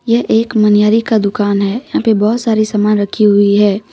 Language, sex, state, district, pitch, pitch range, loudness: Hindi, female, Jharkhand, Deoghar, 210 Hz, 205-225 Hz, -12 LUFS